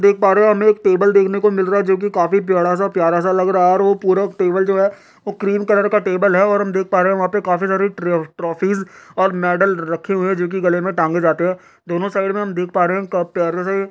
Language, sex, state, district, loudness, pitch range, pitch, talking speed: Hindi, male, Uttar Pradesh, Deoria, -16 LUFS, 180-200 Hz, 190 Hz, 310 wpm